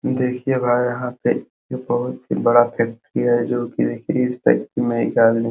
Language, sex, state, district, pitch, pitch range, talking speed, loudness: Hindi, male, Bihar, Araria, 120 Hz, 115-125 Hz, 205 wpm, -20 LUFS